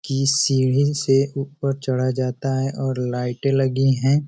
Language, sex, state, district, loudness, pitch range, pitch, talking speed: Hindi, male, Uttar Pradesh, Ghazipur, -21 LUFS, 130-140 Hz, 135 Hz, 170 wpm